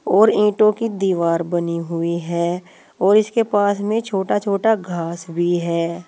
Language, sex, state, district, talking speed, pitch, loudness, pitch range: Hindi, female, Uttar Pradesh, Saharanpur, 160 wpm, 180 Hz, -19 LUFS, 170-210 Hz